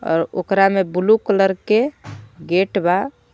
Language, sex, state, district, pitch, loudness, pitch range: Bhojpuri, female, Jharkhand, Palamu, 190 Hz, -18 LUFS, 175-200 Hz